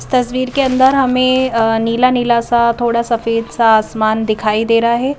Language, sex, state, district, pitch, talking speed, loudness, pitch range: Hindi, female, Madhya Pradesh, Bhopal, 235 Hz, 195 wpm, -14 LUFS, 225-255 Hz